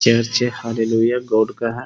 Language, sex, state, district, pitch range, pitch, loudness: Hindi, male, Bihar, Muzaffarpur, 115-120 Hz, 115 Hz, -19 LUFS